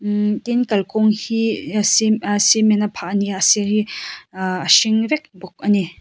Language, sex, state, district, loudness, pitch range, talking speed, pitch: Mizo, female, Mizoram, Aizawl, -17 LUFS, 200-220 Hz, 170 wpm, 210 Hz